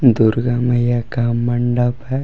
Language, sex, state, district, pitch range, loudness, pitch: Hindi, male, Jharkhand, Palamu, 120-125 Hz, -17 LUFS, 120 Hz